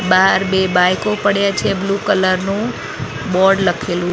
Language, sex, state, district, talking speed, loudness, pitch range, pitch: Gujarati, female, Maharashtra, Mumbai Suburban, 175 wpm, -16 LUFS, 185-200 Hz, 190 Hz